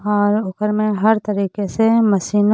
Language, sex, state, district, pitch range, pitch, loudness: Bhojpuri, female, Jharkhand, Palamu, 205-215 Hz, 210 Hz, -17 LUFS